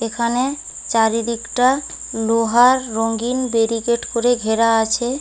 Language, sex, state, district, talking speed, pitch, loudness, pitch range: Bengali, female, West Bengal, Paschim Medinipur, 90 wpm, 235 Hz, -18 LUFS, 225-245 Hz